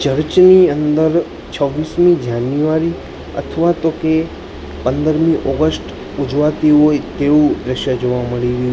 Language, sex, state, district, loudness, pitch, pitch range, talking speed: Gujarati, male, Gujarat, Gandhinagar, -15 LUFS, 150 Hz, 135-160 Hz, 115 wpm